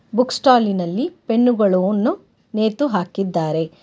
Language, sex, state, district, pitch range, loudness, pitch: Kannada, female, Karnataka, Bangalore, 185-245 Hz, -18 LUFS, 215 Hz